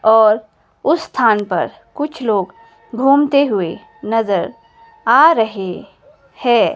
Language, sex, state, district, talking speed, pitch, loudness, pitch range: Hindi, female, Himachal Pradesh, Shimla, 105 wpm, 225 Hz, -16 LUFS, 215-280 Hz